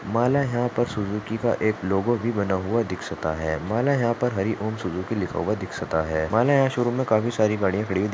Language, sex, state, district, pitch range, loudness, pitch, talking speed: Hindi, male, Maharashtra, Aurangabad, 95-120 Hz, -24 LUFS, 110 Hz, 170 wpm